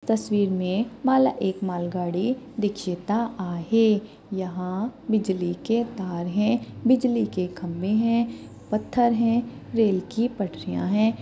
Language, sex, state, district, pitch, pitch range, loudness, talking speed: Marathi, female, Maharashtra, Sindhudurg, 210 Hz, 185-230 Hz, -25 LUFS, 125 wpm